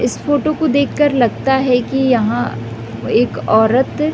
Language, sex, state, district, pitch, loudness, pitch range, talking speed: Hindi, female, Chhattisgarh, Raigarh, 250 Hz, -15 LUFS, 220-285 Hz, 160 wpm